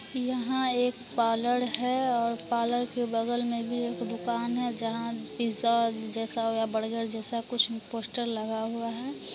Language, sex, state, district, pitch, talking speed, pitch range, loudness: Hindi, female, Bihar, Araria, 235 Hz, 155 wpm, 230-245 Hz, -30 LUFS